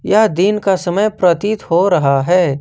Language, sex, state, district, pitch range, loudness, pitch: Hindi, male, Jharkhand, Ranchi, 175-210 Hz, -14 LUFS, 185 Hz